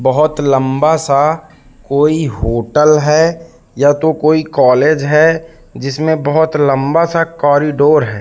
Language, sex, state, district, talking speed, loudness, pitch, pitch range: Hindi, male, Madhya Pradesh, Katni, 115 wpm, -12 LUFS, 150 Hz, 140-160 Hz